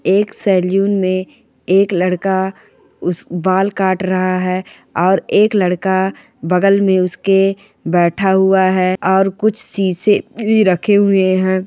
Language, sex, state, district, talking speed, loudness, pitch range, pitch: Hindi, female, Chhattisgarh, Rajnandgaon, 135 wpm, -15 LUFS, 185-195 Hz, 190 Hz